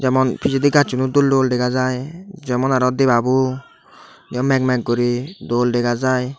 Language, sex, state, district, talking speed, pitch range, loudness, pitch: Chakma, male, Tripura, Dhalai, 150 wpm, 125-135 Hz, -18 LUFS, 130 Hz